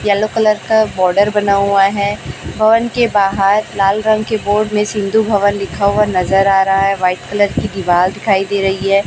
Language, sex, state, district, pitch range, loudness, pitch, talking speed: Hindi, male, Chhattisgarh, Raipur, 195-210 Hz, -14 LUFS, 200 Hz, 205 wpm